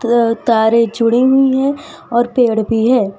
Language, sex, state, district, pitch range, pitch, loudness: Hindi, female, Gujarat, Valsad, 230-260 Hz, 240 Hz, -13 LUFS